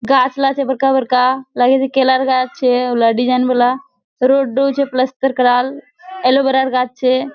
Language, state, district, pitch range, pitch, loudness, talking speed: Surjapuri, Bihar, Kishanganj, 250-270 Hz, 260 Hz, -15 LUFS, 140 wpm